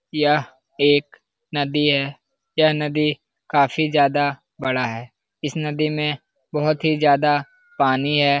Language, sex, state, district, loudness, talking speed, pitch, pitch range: Hindi, male, Bihar, Lakhisarai, -20 LUFS, 130 wpm, 150 Hz, 140-155 Hz